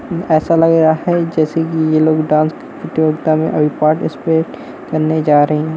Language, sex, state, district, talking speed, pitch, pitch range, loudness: Hindi, male, Uttar Pradesh, Hamirpur, 175 wpm, 155 Hz, 155-160 Hz, -14 LUFS